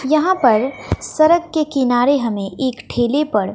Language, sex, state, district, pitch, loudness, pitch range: Hindi, female, Bihar, West Champaran, 265 Hz, -17 LUFS, 240-310 Hz